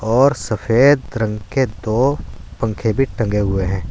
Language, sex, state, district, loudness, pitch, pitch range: Hindi, male, Uttar Pradesh, Saharanpur, -18 LUFS, 110 Hz, 105-130 Hz